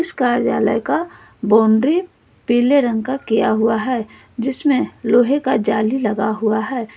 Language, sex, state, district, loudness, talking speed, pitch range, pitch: Hindi, female, Jharkhand, Ranchi, -17 LUFS, 145 wpm, 220-270 Hz, 240 Hz